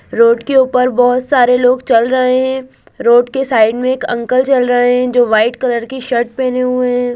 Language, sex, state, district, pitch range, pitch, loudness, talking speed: Hindi, female, Bihar, Lakhisarai, 240-255 Hz, 250 Hz, -12 LUFS, 220 wpm